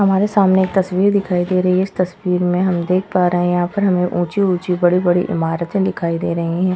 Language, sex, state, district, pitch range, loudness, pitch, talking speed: Hindi, female, Uttar Pradesh, Etah, 175-190 Hz, -17 LUFS, 180 Hz, 230 wpm